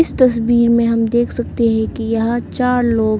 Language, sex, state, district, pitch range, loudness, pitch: Hindi, female, Arunachal Pradesh, Lower Dibang Valley, 225-240 Hz, -16 LUFS, 235 Hz